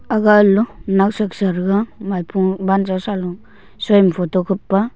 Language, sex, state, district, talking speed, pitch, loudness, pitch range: Wancho, male, Arunachal Pradesh, Longding, 145 wpm, 195 Hz, -17 LUFS, 185-210 Hz